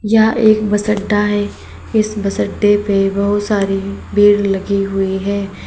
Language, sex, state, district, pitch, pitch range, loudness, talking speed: Hindi, female, Uttar Pradesh, Saharanpur, 205 Hz, 195-210 Hz, -15 LUFS, 160 wpm